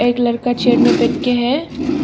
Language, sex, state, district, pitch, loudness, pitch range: Hindi, female, Arunachal Pradesh, Papum Pare, 245 Hz, -15 LUFS, 240-280 Hz